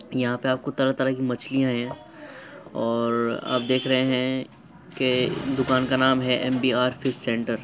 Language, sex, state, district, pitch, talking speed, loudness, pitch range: Hindi, male, Uttar Pradesh, Muzaffarnagar, 130 Hz, 175 wpm, -24 LUFS, 125-130 Hz